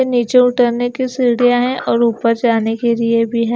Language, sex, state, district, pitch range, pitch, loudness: Hindi, female, Himachal Pradesh, Shimla, 230-245 Hz, 240 Hz, -15 LUFS